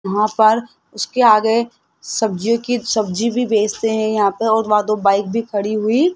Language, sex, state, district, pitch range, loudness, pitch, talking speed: Hindi, male, Rajasthan, Jaipur, 210-230 Hz, -17 LUFS, 220 Hz, 195 wpm